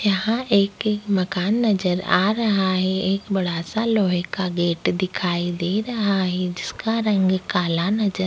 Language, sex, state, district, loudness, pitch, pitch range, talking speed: Hindi, female, Goa, North and South Goa, -21 LUFS, 190 Hz, 180-210 Hz, 150 wpm